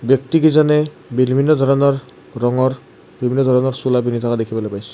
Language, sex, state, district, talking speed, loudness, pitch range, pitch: Assamese, male, Assam, Kamrup Metropolitan, 135 wpm, -16 LUFS, 120-140 Hz, 130 Hz